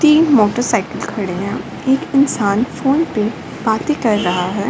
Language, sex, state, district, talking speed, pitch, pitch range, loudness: Hindi, female, Uttar Pradesh, Ghazipur, 190 wpm, 240 Hz, 210-275 Hz, -16 LUFS